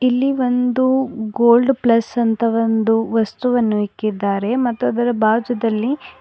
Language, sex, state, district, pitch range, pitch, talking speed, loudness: Kannada, female, Karnataka, Bidar, 225-250 Hz, 235 Hz, 115 wpm, -17 LUFS